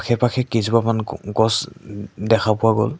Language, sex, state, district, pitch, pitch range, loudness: Assamese, male, Assam, Sonitpur, 115 Hz, 105-120 Hz, -19 LUFS